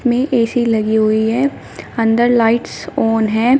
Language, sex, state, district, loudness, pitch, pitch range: Hindi, female, Uttar Pradesh, Shamli, -15 LUFS, 230 Hz, 220-245 Hz